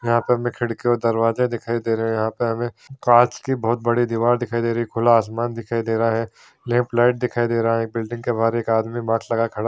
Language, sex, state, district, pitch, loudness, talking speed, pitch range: Hindi, male, Bihar, Saharsa, 115 Hz, -21 LUFS, 265 wpm, 115-120 Hz